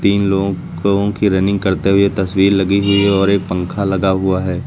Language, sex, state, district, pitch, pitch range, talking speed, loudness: Hindi, male, Uttar Pradesh, Lucknow, 95 Hz, 95-100 Hz, 205 wpm, -15 LUFS